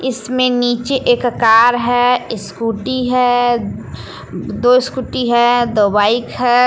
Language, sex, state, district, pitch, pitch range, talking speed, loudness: Hindi, female, Jharkhand, Palamu, 245 Hz, 235-250 Hz, 115 wpm, -14 LUFS